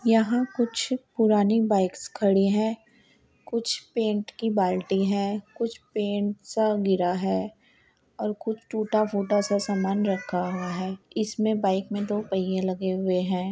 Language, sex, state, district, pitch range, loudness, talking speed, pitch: Hindi, female, Uttar Pradesh, Muzaffarnagar, 190-220 Hz, -26 LUFS, 145 wpm, 205 Hz